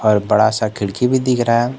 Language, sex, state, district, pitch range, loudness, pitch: Hindi, male, Jharkhand, Garhwa, 105-125 Hz, -16 LUFS, 115 Hz